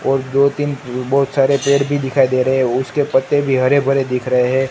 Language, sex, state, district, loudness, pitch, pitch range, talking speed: Hindi, male, Gujarat, Gandhinagar, -16 LUFS, 135 Hz, 130-140 Hz, 240 wpm